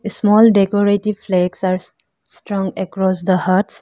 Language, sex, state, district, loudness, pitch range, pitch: English, female, Arunachal Pradesh, Lower Dibang Valley, -16 LUFS, 185-205 Hz, 195 Hz